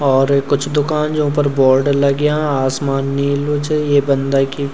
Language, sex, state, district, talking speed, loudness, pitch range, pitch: Garhwali, male, Uttarakhand, Uttarkashi, 165 wpm, -16 LUFS, 135-145 Hz, 140 Hz